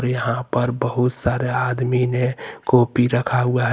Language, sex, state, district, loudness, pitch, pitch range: Hindi, male, Jharkhand, Deoghar, -20 LUFS, 125 Hz, 120-125 Hz